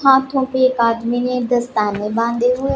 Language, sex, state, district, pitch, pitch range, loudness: Hindi, female, Punjab, Pathankot, 245 Hz, 230-260 Hz, -17 LUFS